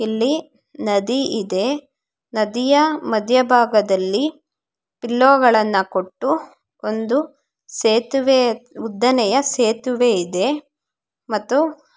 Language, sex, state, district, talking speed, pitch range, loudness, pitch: Kannada, female, Karnataka, Chamarajanagar, 65 wpm, 215-275 Hz, -18 LUFS, 245 Hz